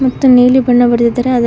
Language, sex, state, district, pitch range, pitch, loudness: Kannada, female, Karnataka, Koppal, 245-255 Hz, 245 Hz, -10 LUFS